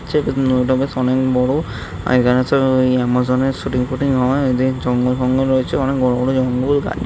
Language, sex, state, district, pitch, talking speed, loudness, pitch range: Bengali, male, West Bengal, Jhargram, 130 Hz, 205 wpm, -17 LUFS, 125-135 Hz